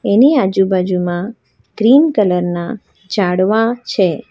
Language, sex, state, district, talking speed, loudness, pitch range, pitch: Gujarati, female, Gujarat, Valsad, 95 wpm, -14 LUFS, 185-230 Hz, 195 Hz